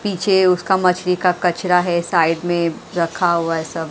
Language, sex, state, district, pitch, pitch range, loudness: Hindi, female, Maharashtra, Mumbai Suburban, 180 Hz, 170-180 Hz, -18 LUFS